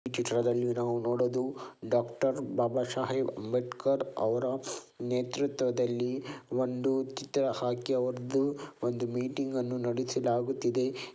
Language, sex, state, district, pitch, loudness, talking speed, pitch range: Kannada, male, Karnataka, Dakshina Kannada, 125 Hz, -32 LUFS, 95 wpm, 120-130 Hz